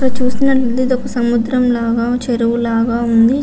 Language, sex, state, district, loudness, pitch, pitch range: Telugu, female, Andhra Pradesh, Visakhapatnam, -15 LUFS, 240 Hz, 235-255 Hz